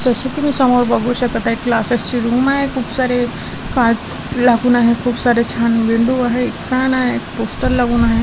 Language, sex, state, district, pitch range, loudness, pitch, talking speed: Marathi, female, Maharashtra, Washim, 235-255 Hz, -16 LUFS, 245 Hz, 195 wpm